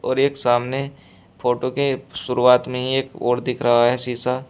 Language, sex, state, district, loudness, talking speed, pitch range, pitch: Hindi, male, Uttar Pradesh, Shamli, -20 LUFS, 185 wpm, 120-130 Hz, 125 Hz